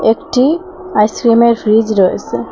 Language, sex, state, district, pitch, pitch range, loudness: Bengali, female, Assam, Hailakandi, 225 Hz, 210-260 Hz, -12 LUFS